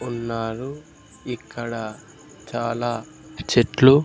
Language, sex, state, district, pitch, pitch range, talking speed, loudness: Telugu, male, Andhra Pradesh, Sri Satya Sai, 120 Hz, 115-145 Hz, 60 wpm, -24 LUFS